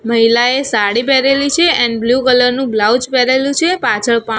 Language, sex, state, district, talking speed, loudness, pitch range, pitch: Gujarati, female, Gujarat, Gandhinagar, 180 wpm, -12 LUFS, 230-270 Hz, 250 Hz